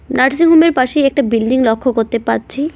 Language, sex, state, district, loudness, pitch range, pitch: Bengali, female, West Bengal, Cooch Behar, -13 LUFS, 235-295 Hz, 260 Hz